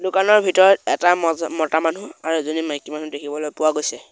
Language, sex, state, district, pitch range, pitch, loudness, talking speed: Assamese, male, Assam, Sonitpur, 155-185 Hz, 160 Hz, -19 LUFS, 190 wpm